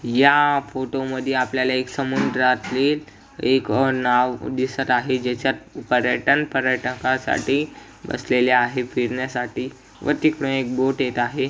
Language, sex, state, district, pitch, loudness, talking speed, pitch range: Marathi, male, Maharashtra, Aurangabad, 130 Hz, -21 LUFS, 120 wpm, 125-135 Hz